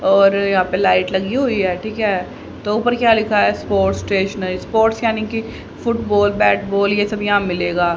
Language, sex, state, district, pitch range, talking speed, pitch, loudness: Hindi, female, Haryana, Charkhi Dadri, 190-220 Hz, 195 wpm, 205 Hz, -17 LUFS